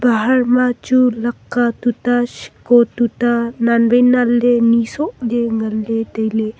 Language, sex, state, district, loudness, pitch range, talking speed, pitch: Wancho, female, Arunachal Pradesh, Longding, -16 LUFS, 230-245 Hz, 155 wpm, 240 Hz